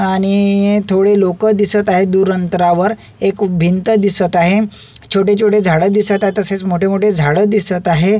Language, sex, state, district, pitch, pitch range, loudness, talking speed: Marathi, male, Maharashtra, Solapur, 195 Hz, 185-205 Hz, -13 LUFS, 160 wpm